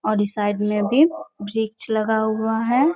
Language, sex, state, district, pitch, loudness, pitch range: Hindi, female, Bihar, Bhagalpur, 220 Hz, -21 LUFS, 210-225 Hz